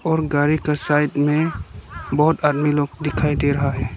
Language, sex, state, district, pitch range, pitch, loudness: Hindi, male, Arunachal Pradesh, Lower Dibang Valley, 140-150 Hz, 145 Hz, -19 LUFS